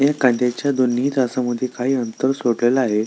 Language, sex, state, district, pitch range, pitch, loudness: Marathi, male, Maharashtra, Solapur, 120-135 Hz, 125 Hz, -19 LUFS